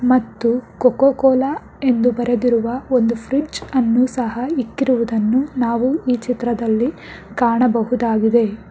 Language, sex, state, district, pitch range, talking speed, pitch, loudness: Kannada, female, Karnataka, Bangalore, 235-255 Hz, 95 wpm, 245 Hz, -18 LUFS